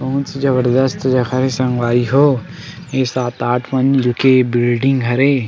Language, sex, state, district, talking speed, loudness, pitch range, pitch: Chhattisgarhi, male, Chhattisgarh, Sukma, 155 wpm, -15 LUFS, 125-135 Hz, 130 Hz